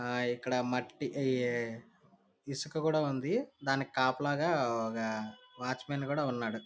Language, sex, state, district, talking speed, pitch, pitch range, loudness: Telugu, male, Andhra Pradesh, Anantapur, 115 wpm, 130 Hz, 120-140 Hz, -34 LUFS